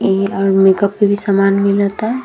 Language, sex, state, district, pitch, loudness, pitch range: Bhojpuri, female, Bihar, Gopalganj, 200 Hz, -13 LUFS, 195-205 Hz